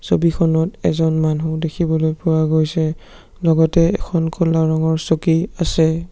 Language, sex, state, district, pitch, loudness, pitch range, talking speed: Assamese, male, Assam, Sonitpur, 160 Hz, -18 LUFS, 160-170 Hz, 120 wpm